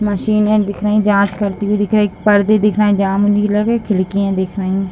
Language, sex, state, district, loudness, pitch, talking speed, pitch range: Hindi, female, Bihar, Jahanabad, -15 LUFS, 205 Hz, 255 wpm, 200-210 Hz